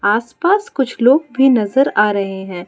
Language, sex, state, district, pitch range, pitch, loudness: Hindi, female, Arunachal Pradesh, Lower Dibang Valley, 205-270 Hz, 235 Hz, -15 LUFS